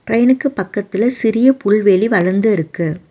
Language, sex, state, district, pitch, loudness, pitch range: Tamil, female, Tamil Nadu, Nilgiris, 210 Hz, -15 LUFS, 190-235 Hz